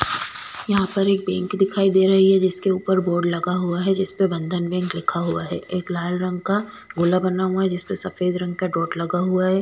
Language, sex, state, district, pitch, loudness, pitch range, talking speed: Hindi, female, Goa, North and South Goa, 185 Hz, -21 LUFS, 180-190 Hz, 235 wpm